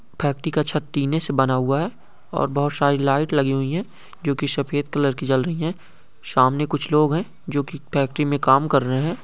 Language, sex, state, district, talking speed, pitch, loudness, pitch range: Hindi, male, Andhra Pradesh, Guntur, 225 wpm, 145 Hz, -21 LUFS, 140-155 Hz